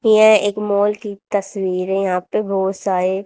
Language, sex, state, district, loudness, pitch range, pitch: Hindi, female, Haryana, Jhajjar, -18 LUFS, 190-210 Hz, 200 Hz